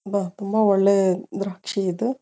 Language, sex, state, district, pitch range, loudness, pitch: Kannada, female, Karnataka, Bijapur, 190-210 Hz, -22 LUFS, 200 Hz